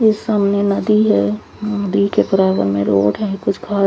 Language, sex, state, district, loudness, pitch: Hindi, female, Haryana, Charkhi Dadri, -16 LUFS, 200 Hz